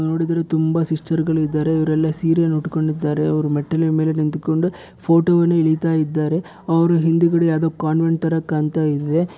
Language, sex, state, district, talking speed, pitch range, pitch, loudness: Kannada, male, Karnataka, Bellary, 155 wpm, 155-165 Hz, 160 Hz, -19 LUFS